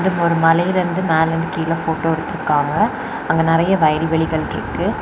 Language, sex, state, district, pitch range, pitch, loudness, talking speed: Tamil, female, Tamil Nadu, Kanyakumari, 160-170 Hz, 165 Hz, -18 LUFS, 145 wpm